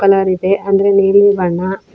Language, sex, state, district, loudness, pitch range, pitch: Kannada, female, Karnataka, Koppal, -12 LUFS, 190-200 Hz, 195 Hz